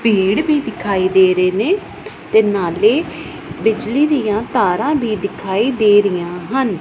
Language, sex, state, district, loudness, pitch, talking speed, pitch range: Punjabi, female, Punjab, Pathankot, -16 LUFS, 210 Hz, 140 wpm, 190-260 Hz